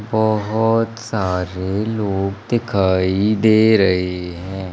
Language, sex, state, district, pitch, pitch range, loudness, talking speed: Hindi, male, Madhya Pradesh, Umaria, 100 Hz, 95-110 Hz, -18 LUFS, 90 wpm